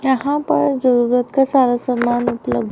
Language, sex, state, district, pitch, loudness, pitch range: Hindi, female, Haryana, Rohtak, 250 Hz, -17 LUFS, 240-270 Hz